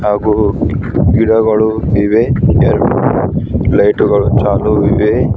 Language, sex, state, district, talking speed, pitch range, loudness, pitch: Kannada, female, Karnataka, Bidar, 90 wpm, 105-110 Hz, -12 LUFS, 105 Hz